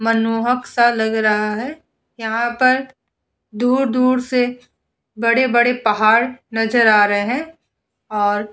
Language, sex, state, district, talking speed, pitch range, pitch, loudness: Hindi, female, Uttar Pradesh, Hamirpur, 120 wpm, 220-250 Hz, 235 Hz, -17 LUFS